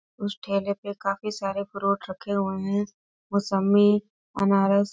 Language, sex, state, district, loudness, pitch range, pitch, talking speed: Hindi, female, Bihar, East Champaran, -25 LUFS, 195-205 Hz, 200 Hz, 145 wpm